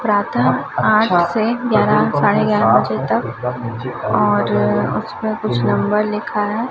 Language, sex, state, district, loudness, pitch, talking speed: Hindi, male, Chhattisgarh, Raipur, -17 LUFS, 210 Hz, 135 wpm